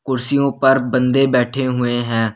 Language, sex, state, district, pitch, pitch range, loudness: Hindi, male, Delhi, New Delhi, 130 Hz, 120-135 Hz, -17 LUFS